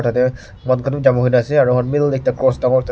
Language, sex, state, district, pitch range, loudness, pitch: Nagamese, male, Nagaland, Kohima, 125-135 Hz, -16 LUFS, 130 Hz